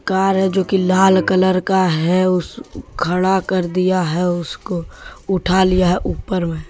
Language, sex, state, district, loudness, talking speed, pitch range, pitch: Hindi, male, Jharkhand, Deoghar, -17 LUFS, 150 wpm, 180-190 Hz, 185 Hz